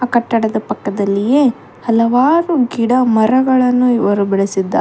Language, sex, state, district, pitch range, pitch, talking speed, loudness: Kannada, female, Karnataka, Bangalore, 205-255 Hz, 235 Hz, 85 wpm, -14 LUFS